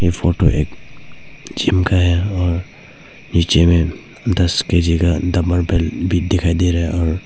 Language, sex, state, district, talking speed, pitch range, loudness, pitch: Hindi, male, Arunachal Pradesh, Papum Pare, 155 wpm, 85-90 Hz, -17 LUFS, 85 Hz